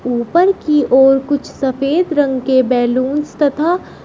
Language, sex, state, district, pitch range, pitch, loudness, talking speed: Hindi, female, Uttar Pradesh, Shamli, 260-300 Hz, 275 Hz, -14 LUFS, 135 wpm